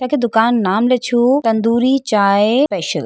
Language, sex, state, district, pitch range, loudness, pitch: Hindi, female, Uttarakhand, Uttarkashi, 215-255 Hz, -14 LUFS, 235 Hz